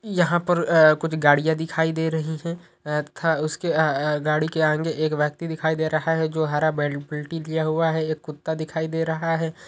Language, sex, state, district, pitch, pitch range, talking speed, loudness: Hindi, male, Uttar Pradesh, Ghazipur, 160 Hz, 155-165 Hz, 210 wpm, -23 LUFS